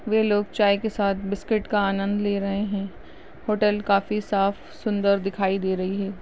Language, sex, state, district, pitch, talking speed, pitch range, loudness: Hindi, female, Uttar Pradesh, Budaun, 200 Hz, 195 wpm, 195-210 Hz, -24 LUFS